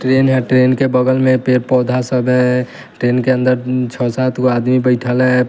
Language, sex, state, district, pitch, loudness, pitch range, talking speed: Hindi, male, Bihar, West Champaran, 125 Hz, -14 LUFS, 125-130 Hz, 205 wpm